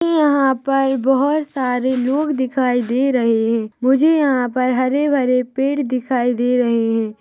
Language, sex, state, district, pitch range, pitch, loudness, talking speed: Hindi, female, Chhattisgarh, Rajnandgaon, 245-275 Hz, 260 Hz, -17 LUFS, 160 wpm